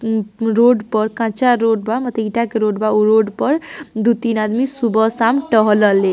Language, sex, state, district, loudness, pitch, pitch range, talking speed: Hindi, female, Bihar, East Champaran, -16 LUFS, 225 Hz, 215-240 Hz, 215 wpm